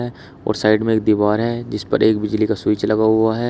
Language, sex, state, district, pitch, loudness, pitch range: Hindi, male, Uttar Pradesh, Shamli, 110 Hz, -18 LUFS, 105-110 Hz